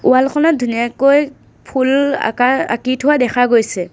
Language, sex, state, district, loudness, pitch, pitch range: Assamese, female, Assam, Sonitpur, -14 LUFS, 255 Hz, 240-280 Hz